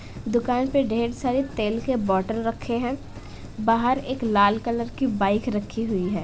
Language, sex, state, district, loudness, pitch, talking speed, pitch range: Hindi, female, Uttar Pradesh, Etah, -24 LUFS, 230 Hz, 175 wpm, 215-250 Hz